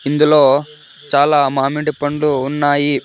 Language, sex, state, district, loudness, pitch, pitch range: Telugu, male, Andhra Pradesh, Sri Satya Sai, -15 LUFS, 145 Hz, 140-150 Hz